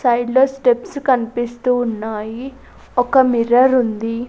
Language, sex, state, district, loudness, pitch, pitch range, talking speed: Telugu, female, Andhra Pradesh, Sri Satya Sai, -17 LUFS, 245 Hz, 235-260 Hz, 110 wpm